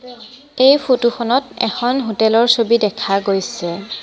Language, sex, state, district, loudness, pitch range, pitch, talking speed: Assamese, female, Assam, Sonitpur, -16 LUFS, 215-250 Hz, 235 Hz, 135 wpm